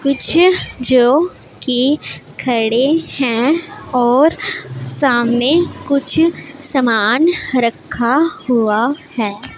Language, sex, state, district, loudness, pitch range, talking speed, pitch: Hindi, female, Punjab, Pathankot, -15 LUFS, 240-300 Hz, 75 wpm, 260 Hz